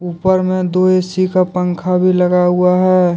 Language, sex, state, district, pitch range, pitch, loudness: Hindi, male, Jharkhand, Deoghar, 180-185 Hz, 185 Hz, -14 LUFS